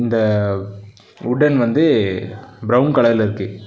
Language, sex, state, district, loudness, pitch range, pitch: Tamil, male, Tamil Nadu, Nilgiris, -17 LUFS, 100-120 Hz, 110 Hz